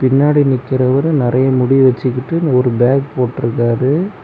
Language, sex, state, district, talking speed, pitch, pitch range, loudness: Tamil, male, Tamil Nadu, Kanyakumari, 115 wpm, 130 Hz, 125-140 Hz, -14 LUFS